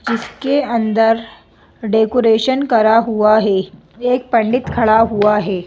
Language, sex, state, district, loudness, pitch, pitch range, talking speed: Hindi, female, Madhya Pradesh, Bhopal, -15 LUFS, 225 Hz, 220-240 Hz, 115 wpm